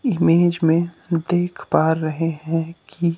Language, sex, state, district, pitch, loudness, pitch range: Hindi, male, Himachal Pradesh, Shimla, 165 Hz, -20 LUFS, 160-175 Hz